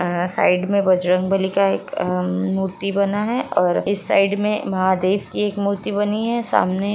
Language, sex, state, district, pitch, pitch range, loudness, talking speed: Hindi, female, Bihar, Lakhisarai, 195 Hz, 185-205 Hz, -20 LUFS, 180 wpm